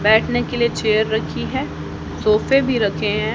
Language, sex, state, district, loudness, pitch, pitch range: Hindi, female, Haryana, Charkhi Dadri, -19 LUFS, 220 Hz, 215-235 Hz